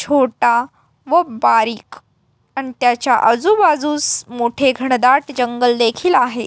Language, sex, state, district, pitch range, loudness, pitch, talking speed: Marathi, female, Maharashtra, Aurangabad, 235-285 Hz, -15 LUFS, 250 Hz, 110 wpm